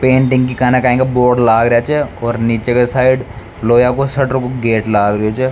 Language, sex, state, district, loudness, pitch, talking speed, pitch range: Rajasthani, male, Rajasthan, Nagaur, -13 LUFS, 125 Hz, 175 wpm, 115-130 Hz